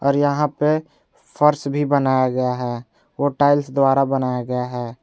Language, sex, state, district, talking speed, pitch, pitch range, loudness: Hindi, male, Jharkhand, Ranchi, 165 wpm, 135 Hz, 125-145 Hz, -19 LUFS